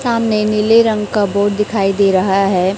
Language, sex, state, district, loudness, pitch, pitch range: Hindi, female, Chhattisgarh, Raipur, -14 LUFS, 205 Hz, 195-215 Hz